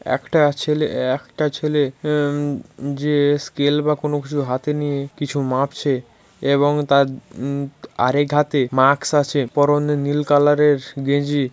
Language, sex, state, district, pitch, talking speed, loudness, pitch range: Bengali, male, West Bengal, Jhargram, 145 Hz, 135 wpm, -19 LUFS, 140-150 Hz